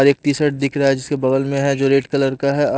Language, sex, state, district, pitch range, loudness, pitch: Hindi, male, Haryana, Jhajjar, 135-140 Hz, -18 LUFS, 140 Hz